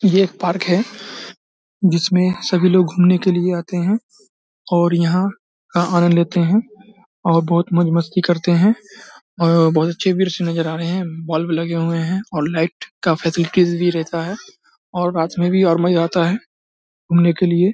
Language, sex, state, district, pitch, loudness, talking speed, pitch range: Hindi, male, Bihar, Samastipur, 175 Hz, -17 LUFS, 180 wpm, 170-185 Hz